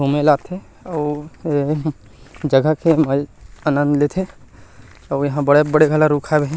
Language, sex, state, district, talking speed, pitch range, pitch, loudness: Chhattisgarhi, male, Chhattisgarh, Rajnandgaon, 135 wpm, 140-155 Hz, 145 Hz, -18 LUFS